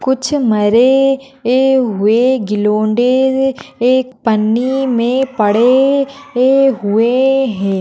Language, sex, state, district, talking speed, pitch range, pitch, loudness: Hindi, female, Maharashtra, Pune, 90 wpm, 225-265 Hz, 255 Hz, -13 LUFS